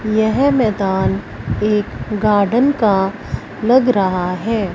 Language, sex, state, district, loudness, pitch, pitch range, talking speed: Hindi, female, Punjab, Fazilka, -16 LUFS, 205 Hz, 180-225 Hz, 100 wpm